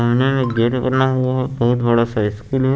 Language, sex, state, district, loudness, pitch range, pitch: Hindi, male, Chandigarh, Chandigarh, -18 LUFS, 120-130 Hz, 125 Hz